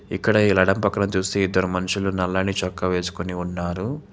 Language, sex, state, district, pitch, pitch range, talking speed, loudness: Telugu, male, Telangana, Hyderabad, 95 Hz, 90-100 Hz, 160 wpm, -22 LUFS